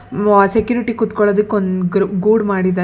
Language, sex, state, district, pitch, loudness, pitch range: Kannada, female, Karnataka, Bangalore, 205 Hz, -15 LUFS, 195-220 Hz